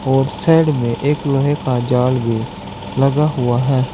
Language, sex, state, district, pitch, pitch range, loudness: Hindi, male, Uttar Pradesh, Saharanpur, 130 Hz, 120-145 Hz, -16 LUFS